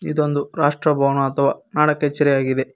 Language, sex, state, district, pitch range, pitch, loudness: Kannada, male, Karnataka, Koppal, 140-150 Hz, 145 Hz, -19 LUFS